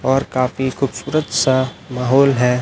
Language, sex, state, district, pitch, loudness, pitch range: Hindi, male, Chhattisgarh, Raipur, 130 Hz, -17 LUFS, 125-135 Hz